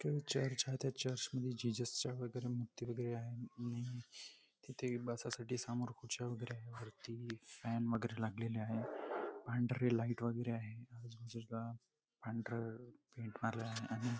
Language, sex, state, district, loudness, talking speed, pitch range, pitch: Marathi, male, Maharashtra, Nagpur, -43 LUFS, 160 wpm, 115-125 Hz, 120 Hz